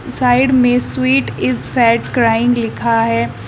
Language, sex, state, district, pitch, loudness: Hindi, female, Uttar Pradesh, Shamli, 230 Hz, -14 LUFS